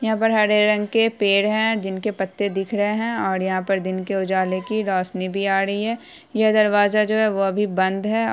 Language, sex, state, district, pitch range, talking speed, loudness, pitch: Hindi, female, Bihar, Saharsa, 195-220 Hz, 230 wpm, -20 LUFS, 205 Hz